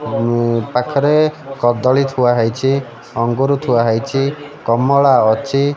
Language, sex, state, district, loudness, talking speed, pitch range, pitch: Odia, male, Odisha, Malkangiri, -15 LUFS, 105 wpm, 120-140 Hz, 130 Hz